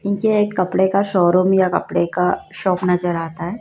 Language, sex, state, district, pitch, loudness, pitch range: Hindi, female, Madhya Pradesh, Dhar, 185 Hz, -18 LUFS, 180-195 Hz